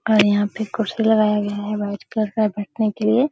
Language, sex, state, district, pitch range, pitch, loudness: Hindi, female, Bihar, Araria, 205-220 Hz, 215 Hz, -20 LUFS